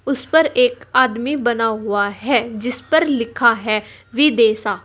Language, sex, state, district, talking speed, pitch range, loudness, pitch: Hindi, female, Uttar Pradesh, Saharanpur, 150 wpm, 225-265 Hz, -17 LUFS, 240 Hz